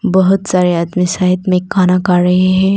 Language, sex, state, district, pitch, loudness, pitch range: Hindi, female, Arunachal Pradesh, Papum Pare, 185 Hz, -13 LUFS, 180-190 Hz